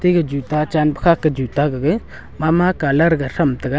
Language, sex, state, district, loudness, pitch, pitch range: Wancho, male, Arunachal Pradesh, Longding, -17 LUFS, 150 Hz, 140-165 Hz